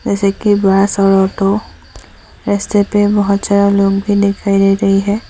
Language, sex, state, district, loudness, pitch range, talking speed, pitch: Hindi, female, Assam, Sonitpur, -13 LUFS, 195-205 Hz, 170 wpm, 200 Hz